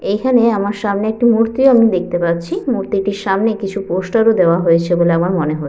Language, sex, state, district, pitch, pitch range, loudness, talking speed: Bengali, female, West Bengal, Jhargram, 200 Hz, 175-225 Hz, -15 LUFS, 210 wpm